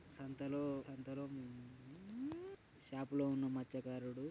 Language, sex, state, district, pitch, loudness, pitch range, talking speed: Telugu, male, Telangana, Karimnagar, 135 Hz, -45 LUFS, 130-145 Hz, 70 wpm